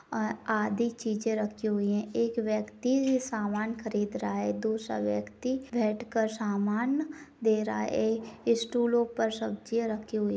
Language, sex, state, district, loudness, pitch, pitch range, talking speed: Hindi, female, Uttar Pradesh, Etah, -30 LUFS, 220 Hz, 210-235 Hz, 155 wpm